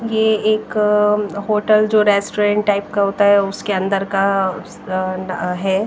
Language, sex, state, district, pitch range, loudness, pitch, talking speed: Hindi, female, Himachal Pradesh, Shimla, 195-210 Hz, -17 LUFS, 205 Hz, 155 wpm